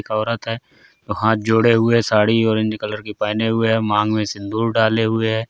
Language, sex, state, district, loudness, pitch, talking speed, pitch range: Hindi, male, Bihar, Gopalganj, -18 LUFS, 110 Hz, 220 wpm, 105-115 Hz